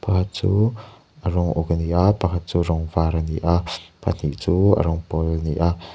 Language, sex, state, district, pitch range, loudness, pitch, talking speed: Mizo, male, Mizoram, Aizawl, 80-95 Hz, -21 LUFS, 85 Hz, 230 wpm